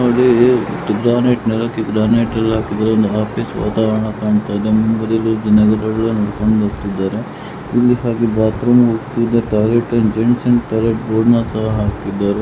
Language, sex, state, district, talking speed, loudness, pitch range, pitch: Kannada, male, Karnataka, Mysore, 50 wpm, -15 LUFS, 105-115 Hz, 110 Hz